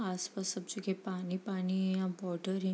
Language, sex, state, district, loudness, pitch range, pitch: Hindi, female, Bihar, East Champaran, -36 LUFS, 185-190 Hz, 190 Hz